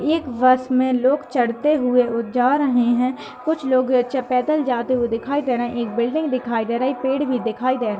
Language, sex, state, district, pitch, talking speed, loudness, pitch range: Hindi, female, Uttar Pradesh, Hamirpur, 255 Hz, 250 wpm, -20 LUFS, 240-270 Hz